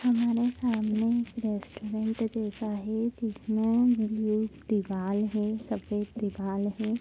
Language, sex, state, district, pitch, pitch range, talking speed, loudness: Hindi, female, Bihar, Kishanganj, 220 Hz, 210-230 Hz, 105 wpm, -30 LUFS